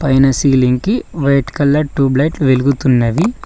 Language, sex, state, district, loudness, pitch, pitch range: Telugu, male, Telangana, Mahabubabad, -14 LUFS, 140 Hz, 130-150 Hz